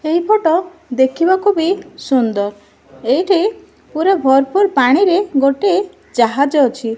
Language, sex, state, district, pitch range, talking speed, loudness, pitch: Odia, female, Odisha, Malkangiri, 265-380 Hz, 105 wpm, -15 LUFS, 325 Hz